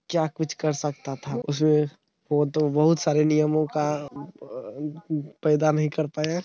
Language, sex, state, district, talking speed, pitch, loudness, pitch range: Hindi, male, Bihar, Araria, 150 wpm, 150 Hz, -25 LUFS, 150-155 Hz